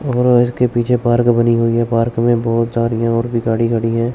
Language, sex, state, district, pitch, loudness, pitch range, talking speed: Hindi, male, Chandigarh, Chandigarh, 115 Hz, -15 LUFS, 115-120 Hz, 230 wpm